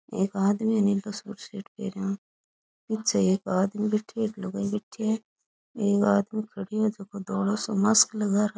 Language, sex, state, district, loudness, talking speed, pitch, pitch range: Rajasthani, female, Rajasthan, Churu, -26 LUFS, 180 wpm, 205 Hz, 200-215 Hz